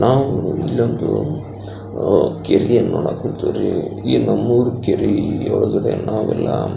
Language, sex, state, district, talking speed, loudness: Kannada, male, Karnataka, Belgaum, 100 wpm, -18 LUFS